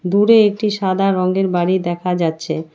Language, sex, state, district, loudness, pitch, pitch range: Bengali, female, West Bengal, Alipurduar, -16 LUFS, 185 Hz, 175-195 Hz